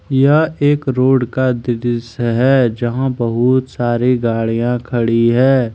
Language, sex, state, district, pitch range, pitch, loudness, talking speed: Hindi, male, Jharkhand, Deoghar, 120-130 Hz, 125 Hz, -15 LUFS, 125 wpm